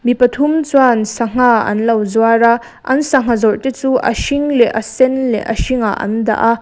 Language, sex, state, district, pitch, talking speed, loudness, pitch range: Mizo, female, Mizoram, Aizawl, 235 Hz, 225 wpm, -14 LUFS, 225-260 Hz